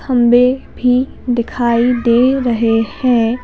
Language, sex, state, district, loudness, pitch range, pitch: Hindi, female, Madhya Pradesh, Bhopal, -14 LUFS, 235-250 Hz, 245 Hz